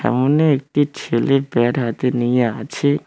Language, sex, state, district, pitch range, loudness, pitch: Bengali, male, West Bengal, Cooch Behar, 120-140 Hz, -18 LUFS, 130 Hz